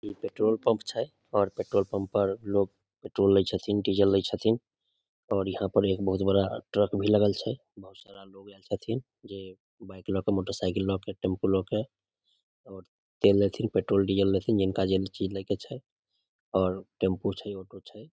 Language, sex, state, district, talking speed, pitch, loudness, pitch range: Maithili, male, Bihar, Samastipur, 185 wpm, 100 Hz, -28 LUFS, 95-100 Hz